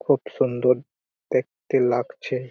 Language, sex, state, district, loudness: Bengali, male, West Bengal, Purulia, -24 LUFS